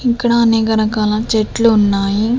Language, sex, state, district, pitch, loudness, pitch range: Telugu, female, Andhra Pradesh, Sri Satya Sai, 220 Hz, -14 LUFS, 215-235 Hz